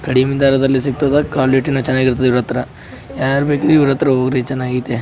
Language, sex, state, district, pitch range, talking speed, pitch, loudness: Kannada, male, Karnataka, Raichur, 130-140 Hz, 145 wpm, 130 Hz, -15 LUFS